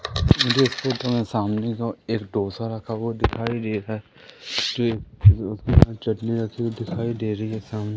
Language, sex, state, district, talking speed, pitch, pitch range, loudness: Hindi, male, Madhya Pradesh, Umaria, 130 wpm, 115 Hz, 110-115 Hz, -23 LUFS